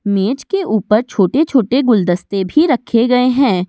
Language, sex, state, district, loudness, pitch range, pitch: Hindi, female, Uttar Pradesh, Budaun, -14 LUFS, 195-265 Hz, 230 Hz